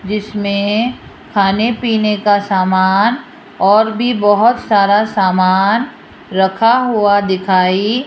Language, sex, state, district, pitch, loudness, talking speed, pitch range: Hindi, female, Rajasthan, Jaipur, 205 Hz, -13 LUFS, 105 wpm, 195-230 Hz